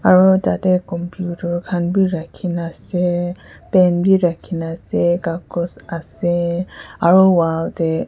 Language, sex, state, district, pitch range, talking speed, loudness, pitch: Nagamese, female, Nagaland, Kohima, 170-180 Hz, 125 wpm, -18 LUFS, 175 Hz